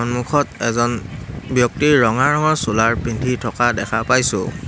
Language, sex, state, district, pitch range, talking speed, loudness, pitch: Assamese, male, Assam, Hailakandi, 115-130 Hz, 130 wpm, -17 LUFS, 120 Hz